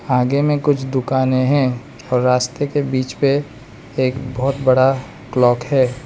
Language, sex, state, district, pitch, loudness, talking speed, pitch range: Hindi, male, Arunachal Pradesh, Lower Dibang Valley, 130 Hz, -18 LUFS, 150 wpm, 125-140 Hz